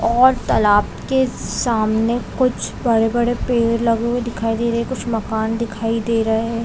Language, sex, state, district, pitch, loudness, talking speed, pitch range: Hindi, female, Chhattisgarh, Raigarh, 230 Hz, -18 LUFS, 180 wpm, 225-240 Hz